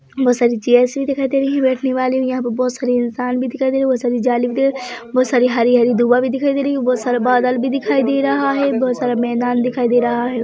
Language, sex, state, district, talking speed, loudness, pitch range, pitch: Hindi, female, Chhattisgarh, Bilaspur, 275 wpm, -16 LUFS, 245-265 Hz, 250 Hz